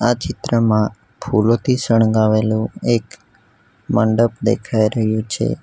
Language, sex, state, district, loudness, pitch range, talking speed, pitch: Gujarati, male, Gujarat, Valsad, -17 LUFS, 110-115 Hz, 95 wpm, 110 Hz